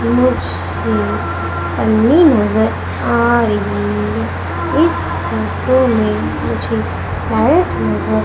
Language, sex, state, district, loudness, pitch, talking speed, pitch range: Hindi, female, Madhya Pradesh, Umaria, -15 LUFS, 105 Hz, 85 wpm, 85-115 Hz